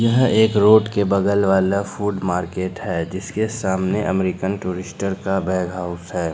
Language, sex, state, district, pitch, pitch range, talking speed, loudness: Hindi, male, Bihar, Katihar, 95 Hz, 90-100 Hz, 160 wpm, -20 LUFS